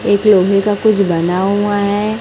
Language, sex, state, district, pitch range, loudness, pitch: Hindi, female, Chhattisgarh, Raipur, 195-210 Hz, -13 LUFS, 205 Hz